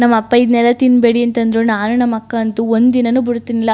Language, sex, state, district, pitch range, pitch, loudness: Kannada, female, Karnataka, Chamarajanagar, 225-240 Hz, 235 Hz, -13 LUFS